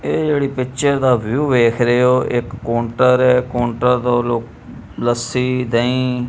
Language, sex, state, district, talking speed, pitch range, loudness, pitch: Punjabi, male, Punjab, Kapurthala, 135 wpm, 120-130 Hz, -16 LUFS, 125 Hz